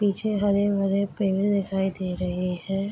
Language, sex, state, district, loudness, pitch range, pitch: Hindi, female, Bihar, Darbhanga, -25 LUFS, 190-200 Hz, 195 Hz